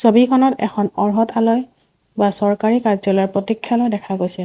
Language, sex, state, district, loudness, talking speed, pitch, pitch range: Assamese, female, Assam, Sonitpur, -17 LUFS, 135 wpm, 215 Hz, 200-230 Hz